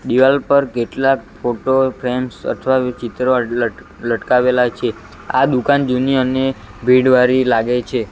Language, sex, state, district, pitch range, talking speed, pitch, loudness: Gujarati, male, Gujarat, Valsad, 120-130 Hz, 135 wpm, 125 Hz, -16 LUFS